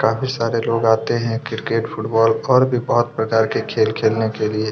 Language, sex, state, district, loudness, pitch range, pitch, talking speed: Hindi, male, Chhattisgarh, Kabirdham, -18 LUFS, 110-115 Hz, 115 Hz, 205 wpm